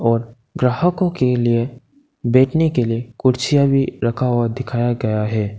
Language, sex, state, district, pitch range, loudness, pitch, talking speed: Hindi, male, Arunachal Pradesh, Lower Dibang Valley, 115-135 Hz, -18 LUFS, 125 Hz, 150 wpm